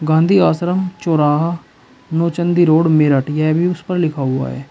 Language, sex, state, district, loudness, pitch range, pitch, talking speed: Hindi, male, Uttar Pradesh, Shamli, -16 LUFS, 150-175 Hz, 165 Hz, 165 wpm